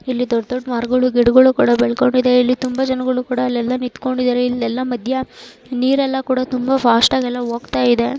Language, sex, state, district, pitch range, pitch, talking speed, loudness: Kannada, female, Karnataka, Dharwad, 245-255 Hz, 250 Hz, 170 wpm, -17 LUFS